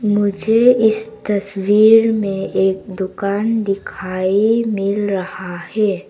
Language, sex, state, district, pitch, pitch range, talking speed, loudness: Hindi, female, Arunachal Pradesh, Papum Pare, 200 Hz, 190-220 Hz, 100 wpm, -16 LUFS